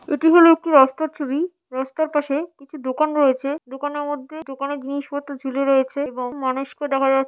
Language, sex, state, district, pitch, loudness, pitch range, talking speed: Bengali, female, West Bengal, Paschim Medinipur, 280 Hz, -20 LUFS, 270-305 Hz, 200 wpm